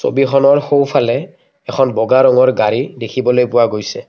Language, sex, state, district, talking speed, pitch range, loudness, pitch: Assamese, male, Assam, Kamrup Metropolitan, 130 wpm, 120-135 Hz, -13 LUFS, 130 Hz